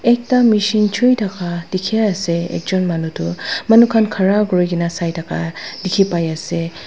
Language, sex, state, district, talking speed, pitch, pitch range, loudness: Nagamese, female, Nagaland, Dimapur, 165 wpm, 185 Hz, 170-215 Hz, -17 LUFS